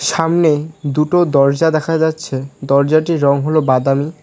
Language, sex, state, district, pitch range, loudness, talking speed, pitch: Bengali, male, West Bengal, Cooch Behar, 140-160 Hz, -15 LUFS, 125 wpm, 150 Hz